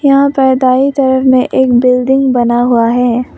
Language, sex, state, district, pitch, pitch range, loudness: Hindi, female, Arunachal Pradesh, Longding, 260 Hz, 245-265 Hz, -10 LUFS